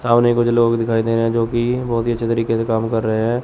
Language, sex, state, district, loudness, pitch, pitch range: Hindi, male, Chandigarh, Chandigarh, -18 LUFS, 115 Hz, 115-120 Hz